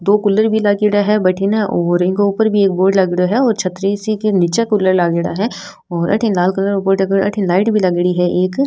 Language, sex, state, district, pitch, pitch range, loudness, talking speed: Rajasthani, female, Rajasthan, Nagaur, 195 Hz, 180-210 Hz, -15 LUFS, 230 wpm